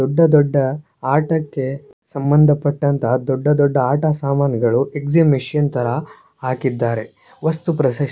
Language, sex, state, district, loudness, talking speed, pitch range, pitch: Kannada, male, Karnataka, Shimoga, -18 LUFS, 95 wpm, 130-150 Hz, 145 Hz